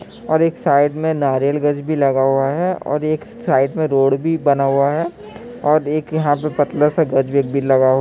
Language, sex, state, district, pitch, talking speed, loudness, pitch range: Hindi, male, Bihar, Kishanganj, 150 Hz, 215 wpm, -17 LUFS, 140-160 Hz